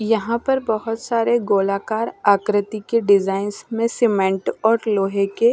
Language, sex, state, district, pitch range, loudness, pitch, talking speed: Hindi, female, Odisha, Nuapada, 200-230 Hz, -19 LUFS, 220 Hz, 140 wpm